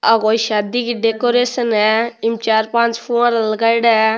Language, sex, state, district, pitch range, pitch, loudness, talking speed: Rajasthani, male, Rajasthan, Nagaur, 220-235 Hz, 230 Hz, -16 LUFS, 155 wpm